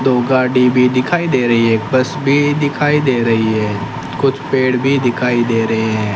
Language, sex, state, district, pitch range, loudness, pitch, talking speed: Hindi, male, Rajasthan, Bikaner, 115-135 Hz, -14 LUFS, 125 Hz, 205 wpm